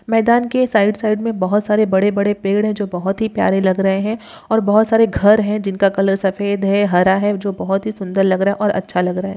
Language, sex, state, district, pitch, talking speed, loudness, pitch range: Hindi, female, Bihar, Jahanabad, 205 Hz, 270 wpm, -16 LUFS, 195-215 Hz